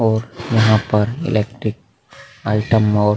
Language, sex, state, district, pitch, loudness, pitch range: Hindi, male, Bihar, Vaishali, 110 Hz, -18 LUFS, 105-115 Hz